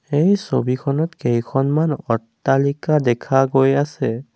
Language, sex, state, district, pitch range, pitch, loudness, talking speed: Assamese, male, Assam, Kamrup Metropolitan, 125-150 Hz, 135 Hz, -19 LUFS, 95 wpm